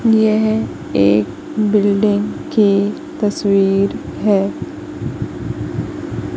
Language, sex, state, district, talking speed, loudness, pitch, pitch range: Hindi, female, Madhya Pradesh, Katni, 55 wpm, -17 LUFS, 210 Hz, 200-220 Hz